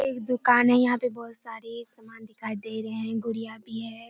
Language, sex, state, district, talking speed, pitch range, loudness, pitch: Hindi, female, Bihar, Kishanganj, 220 wpm, 225-245 Hz, -26 LUFS, 230 Hz